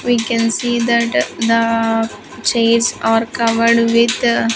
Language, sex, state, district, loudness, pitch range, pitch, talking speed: English, female, Andhra Pradesh, Sri Satya Sai, -15 LUFS, 230-235 Hz, 230 Hz, 120 wpm